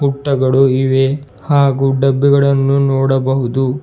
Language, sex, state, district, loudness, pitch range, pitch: Kannada, male, Karnataka, Bidar, -13 LUFS, 135-140 Hz, 135 Hz